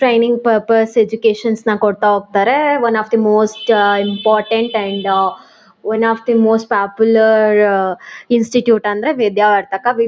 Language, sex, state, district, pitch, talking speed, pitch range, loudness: Kannada, female, Karnataka, Mysore, 220 Hz, 125 wpm, 205-230 Hz, -14 LUFS